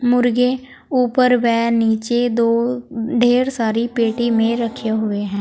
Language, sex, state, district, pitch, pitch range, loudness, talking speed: Hindi, female, Uttar Pradesh, Saharanpur, 235 Hz, 230-245 Hz, -18 LUFS, 135 wpm